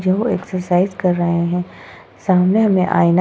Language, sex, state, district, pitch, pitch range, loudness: Hindi, female, Goa, North and South Goa, 185 Hz, 175-190 Hz, -17 LUFS